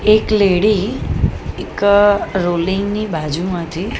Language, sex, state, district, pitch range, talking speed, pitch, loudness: Gujarati, female, Gujarat, Gandhinagar, 175-210 Hz, 105 wpm, 200 Hz, -16 LUFS